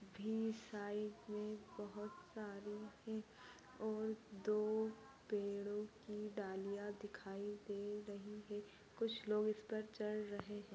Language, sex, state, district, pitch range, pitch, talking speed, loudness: Hindi, female, Maharashtra, Solapur, 205-220 Hz, 210 Hz, 115 wpm, -46 LUFS